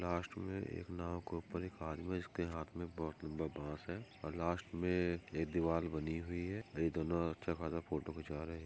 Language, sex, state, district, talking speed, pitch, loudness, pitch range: Hindi, male, Maharashtra, Solapur, 220 wpm, 85 Hz, -42 LUFS, 80-90 Hz